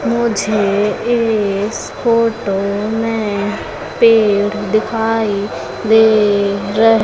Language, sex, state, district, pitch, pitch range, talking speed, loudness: Hindi, female, Madhya Pradesh, Umaria, 215 Hz, 205-225 Hz, 70 wpm, -15 LUFS